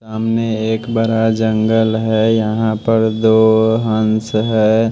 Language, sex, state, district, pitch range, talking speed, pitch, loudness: Hindi, male, Odisha, Malkangiri, 110-115 Hz, 120 wpm, 110 Hz, -15 LUFS